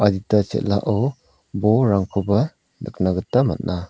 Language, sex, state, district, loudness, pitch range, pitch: Garo, male, Meghalaya, South Garo Hills, -20 LUFS, 95-110 Hz, 100 Hz